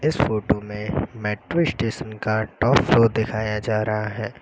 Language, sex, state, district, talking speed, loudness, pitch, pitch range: Hindi, male, Uttar Pradesh, Lucknow, 165 wpm, -22 LUFS, 110 Hz, 105-115 Hz